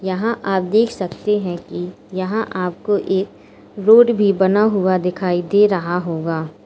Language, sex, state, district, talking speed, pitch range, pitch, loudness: Hindi, female, Uttar Pradesh, Lalitpur, 155 wpm, 180-210 Hz, 190 Hz, -18 LUFS